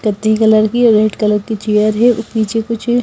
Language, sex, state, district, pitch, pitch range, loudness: Hindi, female, Himachal Pradesh, Shimla, 220 Hz, 215-230 Hz, -13 LUFS